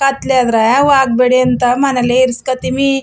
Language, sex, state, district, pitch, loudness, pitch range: Kannada, female, Karnataka, Chamarajanagar, 255 Hz, -12 LUFS, 245-270 Hz